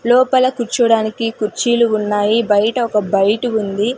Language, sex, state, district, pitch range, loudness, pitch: Telugu, female, Andhra Pradesh, Sri Satya Sai, 210-240 Hz, -15 LUFS, 225 Hz